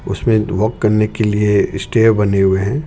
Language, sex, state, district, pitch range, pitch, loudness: Hindi, male, Jharkhand, Ranchi, 100-110 Hz, 105 Hz, -15 LUFS